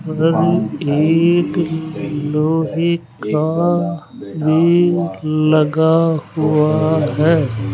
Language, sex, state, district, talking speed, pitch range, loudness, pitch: Hindi, male, Rajasthan, Jaipur, 55 wpm, 150-165 Hz, -16 LUFS, 160 Hz